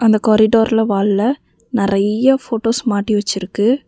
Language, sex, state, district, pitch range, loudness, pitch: Tamil, female, Tamil Nadu, Nilgiris, 205-230 Hz, -15 LUFS, 220 Hz